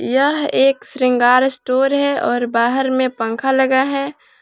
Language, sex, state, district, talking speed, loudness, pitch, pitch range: Hindi, female, Jharkhand, Palamu, 150 wpm, -16 LUFS, 265 Hz, 250-275 Hz